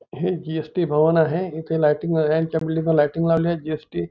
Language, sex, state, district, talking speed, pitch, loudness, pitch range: Marathi, male, Maharashtra, Nagpur, 160 wpm, 160 Hz, -21 LUFS, 155-165 Hz